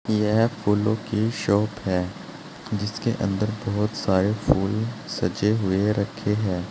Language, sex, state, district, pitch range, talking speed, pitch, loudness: Hindi, male, Uttar Pradesh, Saharanpur, 100-110 Hz, 125 wpm, 105 Hz, -24 LUFS